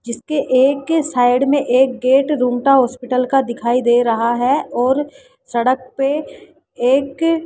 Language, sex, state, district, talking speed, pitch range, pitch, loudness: Hindi, female, Rajasthan, Jaipur, 155 wpm, 245-285 Hz, 265 Hz, -16 LUFS